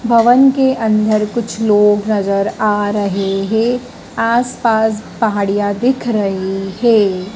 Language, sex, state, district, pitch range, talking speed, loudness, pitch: Hindi, male, Madhya Pradesh, Dhar, 200-235 Hz, 120 wpm, -14 LUFS, 215 Hz